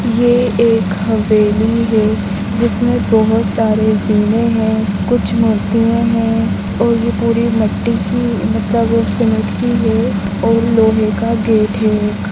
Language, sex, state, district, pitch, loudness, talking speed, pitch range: Hindi, female, Chhattisgarh, Raigarh, 225 Hz, -14 LUFS, 125 wpm, 215-230 Hz